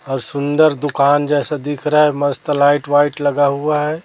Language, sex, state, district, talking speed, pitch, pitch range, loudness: Hindi, male, Chhattisgarh, Raipur, 195 wpm, 145 Hz, 140-150 Hz, -16 LUFS